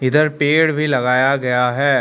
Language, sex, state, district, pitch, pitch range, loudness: Hindi, male, Arunachal Pradesh, Lower Dibang Valley, 140 Hz, 125-150 Hz, -16 LUFS